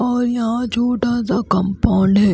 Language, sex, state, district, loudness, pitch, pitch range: Hindi, female, Haryana, Rohtak, -18 LUFS, 235 Hz, 200-240 Hz